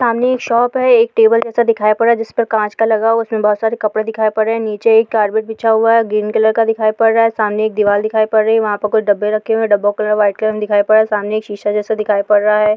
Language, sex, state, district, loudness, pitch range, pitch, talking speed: Hindi, female, Bihar, Jamui, -14 LUFS, 210-225 Hz, 220 Hz, 305 wpm